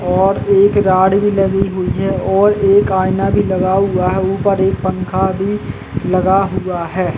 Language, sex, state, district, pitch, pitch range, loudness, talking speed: Hindi, male, Uttar Pradesh, Jalaun, 190 Hz, 185-195 Hz, -14 LUFS, 175 wpm